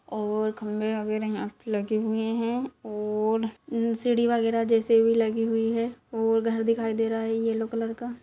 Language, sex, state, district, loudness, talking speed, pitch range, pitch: Hindi, female, Uttar Pradesh, Ghazipur, -26 LUFS, 190 wpm, 220-230 Hz, 225 Hz